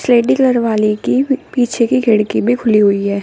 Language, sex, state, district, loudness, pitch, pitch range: Hindi, female, Uttar Pradesh, Shamli, -14 LUFS, 235 Hz, 215-250 Hz